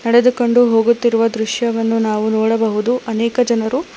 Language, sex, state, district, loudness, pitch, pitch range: Kannada, female, Karnataka, Bangalore, -16 LUFS, 230 Hz, 225-240 Hz